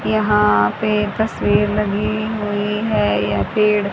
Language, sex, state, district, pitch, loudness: Hindi, female, Haryana, Charkhi Dadri, 205 Hz, -18 LUFS